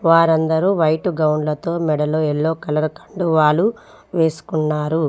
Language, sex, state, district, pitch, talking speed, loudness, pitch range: Telugu, female, Telangana, Mahabubabad, 160 Hz, 95 wpm, -18 LUFS, 155-165 Hz